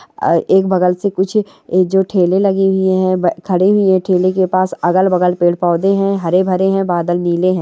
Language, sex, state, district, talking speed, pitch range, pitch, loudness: Hindi, female, West Bengal, Purulia, 215 wpm, 180-195 Hz, 185 Hz, -14 LUFS